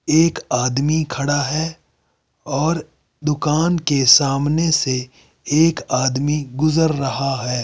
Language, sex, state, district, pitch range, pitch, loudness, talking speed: Hindi, male, Delhi, New Delhi, 130-155 Hz, 145 Hz, -18 LUFS, 110 wpm